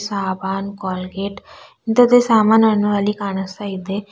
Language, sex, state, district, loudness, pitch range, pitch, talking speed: Kannada, female, Karnataka, Bidar, -18 LUFS, 195-215 Hz, 200 Hz, 100 wpm